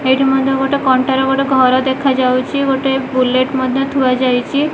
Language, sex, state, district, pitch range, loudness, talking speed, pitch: Odia, female, Odisha, Malkangiri, 255-270 Hz, -14 LUFS, 150 wpm, 265 Hz